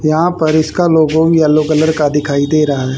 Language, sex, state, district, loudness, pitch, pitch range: Hindi, female, Haryana, Charkhi Dadri, -12 LUFS, 155 Hz, 150-160 Hz